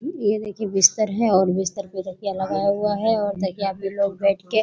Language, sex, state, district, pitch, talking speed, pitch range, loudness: Hindi, female, Bihar, Muzaffarpur, 200 Hz, 235 wpm, 190-210 Hz, -22 LUFS